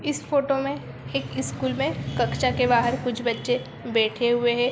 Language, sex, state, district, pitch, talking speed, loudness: Hindi, female, Bihar, Sitamarhi, 240 Hz, 180 wpm, -24 LUFS